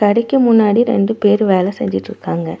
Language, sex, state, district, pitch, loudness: Tamil, female, Tamil Nadu, Nilgiris, 205 Hz, -14 LUFS